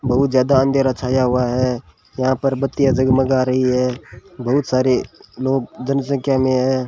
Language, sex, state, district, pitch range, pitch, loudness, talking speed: Hindi, male, Rajasthan, Bikaner, 125-135 Hz, 130 Hz, -18 LUFS, 155 wpm